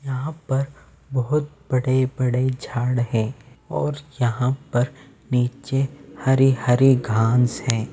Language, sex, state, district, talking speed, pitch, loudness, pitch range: Hindi, male, Bihar, Patna, 100 wpm, 130 Hz, -22 LUFS, 125-135 Hz